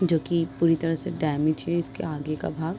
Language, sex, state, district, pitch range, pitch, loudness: Hindi, female, Uttar Pradesh, Deoria, 155-170 Hz, 165 Hz, -26 LUFS